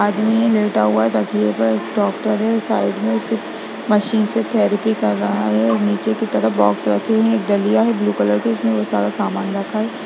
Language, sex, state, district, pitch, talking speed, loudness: Hindi, female, Bihar, Gaya, 115 Hz, 205 wpm, -18 LUFS